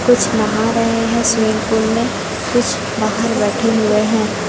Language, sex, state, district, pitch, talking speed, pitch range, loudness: Hindi, female, Chhattisgarh, Raipur, 225 Hz, 175 wpm, 215-230 Hz, -16 LUFS